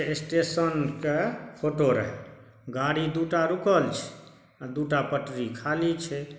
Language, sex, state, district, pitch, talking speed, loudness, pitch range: Maithili, male, Bihar, Saharsa, 150 Hz, 120 wpm, -27 LUFS, 140-165 Hz